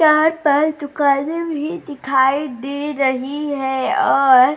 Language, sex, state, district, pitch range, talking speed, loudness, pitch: Hindi, female, Bihar, Bhagalpur, 270-305 Hz, 130 wpm, -18 LUFS, 285 Hz